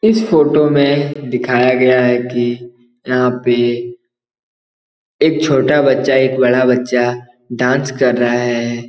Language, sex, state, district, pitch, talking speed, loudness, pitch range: Hindi, male, Bihar, Jahanabad, 125 Hz, 130 wpm, -14 LUFS, 120-135 Hz